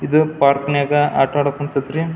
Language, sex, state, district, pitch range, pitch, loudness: Kannada, male, Karnataka, Belgaum, 140-150 Hz, 145 Hz, -17 LUFS